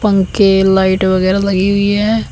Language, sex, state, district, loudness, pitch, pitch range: Hindi, female, Uttar Pradesh, Shamli, -12 LUFS, 195 Hz, 190-200 Hz